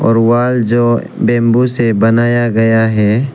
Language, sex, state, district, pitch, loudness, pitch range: Hindi, male, Arunachal Pradesh, Lower Dibang Valley, 115 Hz, -12 LUFS, 115-120 Hz